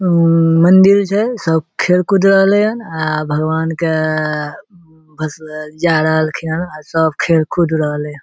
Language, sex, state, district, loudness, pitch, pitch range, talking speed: Maithili, male, Bihar, Samastipur, -14 LUFS, 160 Hz, 155-180 Hz, 170 wpm